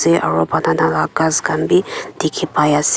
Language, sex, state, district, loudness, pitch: Nagamese, female, Nagaland, Kohima, -16 LUFS, 150 Hz